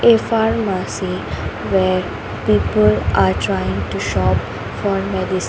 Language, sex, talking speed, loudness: English, female, 120 wpm, -18 LUFS